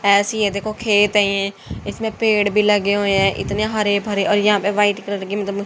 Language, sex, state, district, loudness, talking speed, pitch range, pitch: Hindi, female, Haryana, Rohtak, -18 LUFS, 220 wpm, 200-210 Hz, 205 Hz